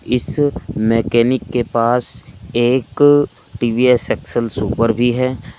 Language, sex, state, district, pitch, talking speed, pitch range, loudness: Hindi, male, Uttar Pradesh, Saharanpur, 120 Hz, 105 wpm, 115-130 Hz, -16 LUFS